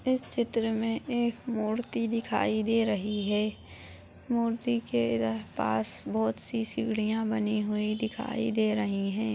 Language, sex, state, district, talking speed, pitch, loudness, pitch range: Hindi, female, Chhattisgarh, Balrampur, 135 wpm, 220 Hz, -30 LUFS, 210-230 Hz